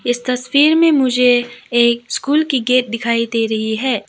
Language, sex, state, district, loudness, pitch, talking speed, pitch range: Hindi, female, Arunachal Pradesh, Lower Dibang Valley, -15 LUFS, 245 Hz, 175 wpm, 235-260 Hz